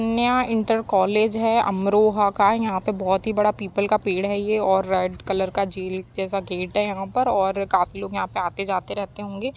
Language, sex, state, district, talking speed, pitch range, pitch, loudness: Hindi, female, Uttar Pradesh, Jyotiba Phule Nagar, 230 wpm, 190-215 Hz, 200 Hz, -22 LUFS